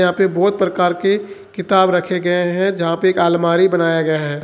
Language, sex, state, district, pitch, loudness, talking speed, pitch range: Hindi, male, Jharkhand, Ranchi, 180 Hz, -16 LUFS, 215 wpm, 170-190 Hz